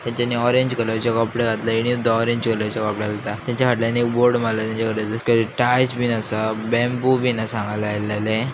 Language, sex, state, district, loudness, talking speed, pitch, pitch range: Konkani, male, Goa, North and South Goa, -20 LUFS, 185 wpm, 115 Hz, 110-120 Hz